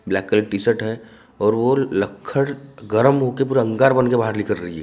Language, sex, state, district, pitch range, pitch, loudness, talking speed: Hindi, male, Maharashtra, Gondia, 105-135 Hz, 115 Hz, -19 LUFS, 210 wpm